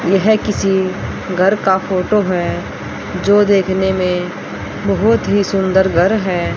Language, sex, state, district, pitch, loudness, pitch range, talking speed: Hindi, female, Haryana, Rohtak, 190 Hz, -15 LUFS, 180-200 Hz, 135 wpm